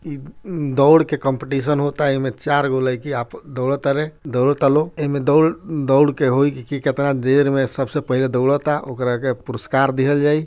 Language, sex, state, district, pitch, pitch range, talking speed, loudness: Bhojpuri, male, Bihar, Gopalganj, 140 Hz, 135-150 Hz, 170 wpm, -19 LUFS